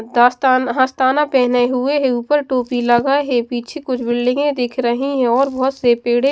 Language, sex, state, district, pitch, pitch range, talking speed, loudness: Hindi, female, Haryana, Jhajjar, 255 Hz, 245-270 Hz, 190 wpm, -16 LUFS